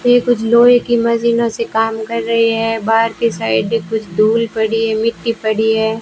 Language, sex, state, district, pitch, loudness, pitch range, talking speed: Hindi, female, Rajasthan, Bikaner, 225 Hz, -15 LUFS, 220-230 Hz, 200 wpm